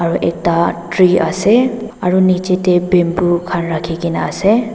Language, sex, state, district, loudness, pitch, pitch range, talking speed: Nagamese, female, Nagaland, Dimapur, -14 LUFS, 180 Hz, 170-185 Hz, 140 wpm